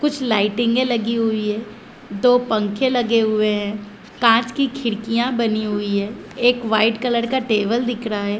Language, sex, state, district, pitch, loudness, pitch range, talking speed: Hindi, female, Chhattisgarh, Bilaspur, 230 Hz, -19 LUFS, 215-245 Hz, 170 wpm